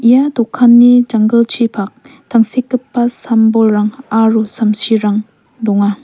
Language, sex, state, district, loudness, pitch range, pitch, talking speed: Garo, female, Meghalaya, West Garo Hills, -12 LUFS, 215-245 Hz, 230 Hz, 80 wpm